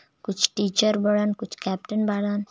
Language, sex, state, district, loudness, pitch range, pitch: Bhojpuri, male, Jharkhand, Palamu, -24 LUFS, 200-215 Hz, 210 Hz